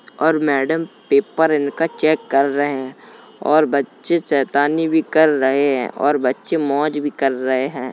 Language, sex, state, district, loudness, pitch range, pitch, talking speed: Hindi, male, Uttar Pradesh, Jalaun, -18 LUFS, 135-160 Hz, 145 Hz, 165 wpm